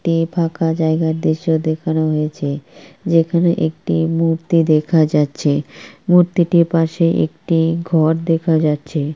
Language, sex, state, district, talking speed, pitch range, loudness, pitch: Bengali, male, West Bengal, Purulia, 120 wpm, 155-165 Hz, -16 LUFS, 165 Hz